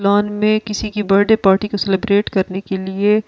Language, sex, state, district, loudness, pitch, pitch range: Hindi, female, Delhi, New Delhi, -17 LUFS, 205 Hz, 195-210 Hz